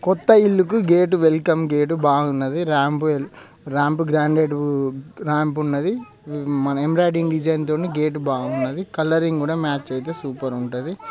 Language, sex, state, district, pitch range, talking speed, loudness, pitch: Telugu, male, Telangana, Karimnagar, 140-165 Hz, 135 wpm, -20 LUFS, 155 Hz